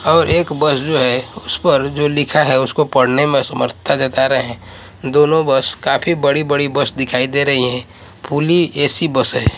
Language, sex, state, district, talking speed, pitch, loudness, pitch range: Hindi, male, Odisha, Malkangiri, 190 wpm, 140 Hz, -15 LUFS, 130-150 Hz